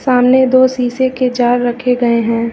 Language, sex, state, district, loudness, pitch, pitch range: Hindi, female, Uttar Pradesh, Lucknow, -13 LUFS, 250 Hz, 240-255 Hz